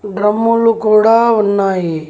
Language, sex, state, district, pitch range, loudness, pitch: Telugu, female, Andhra Pradesh, Annamaya, 200-225 Hz, -12 LUFS, 215 Hz